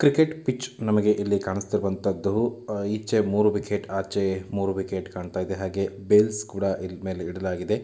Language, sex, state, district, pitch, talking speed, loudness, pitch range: Kannada, male, Karnataka, Mysore, 100 Hz, 145 wpm, -26 LUFS, 95-105 Hz